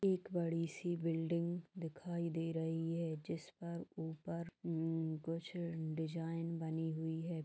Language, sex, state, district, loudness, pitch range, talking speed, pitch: Magahi, female, Bihar, Gaya, -42 LUFS, 160-170 Hz, 135 wpm, 165 Hz